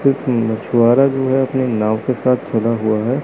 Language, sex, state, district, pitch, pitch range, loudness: Hindi, male, Chandigarh, Chandigarh, 125 Hz, 115-130 Hz, -16 LUFS